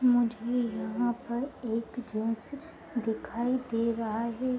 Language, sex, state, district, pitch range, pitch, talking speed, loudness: Hindi, female, Uttar Pradesh, Jalaun, 225-250 Hz, 235 Hz, 115 wpm, -31 LUFS